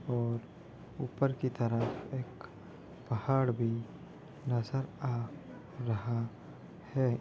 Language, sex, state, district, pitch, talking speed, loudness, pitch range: Hindi, male, Bihar, Saharsa, 125 Hz, 90 wpm, -35 LUFS, 115-135 Hz